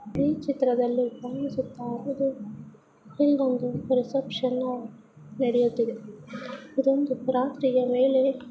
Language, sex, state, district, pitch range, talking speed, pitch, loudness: Kannada, female, Karnataka, Chamarajanagar, 245-270 Hz, 65 wpm, 255 Hz, -26 LUFS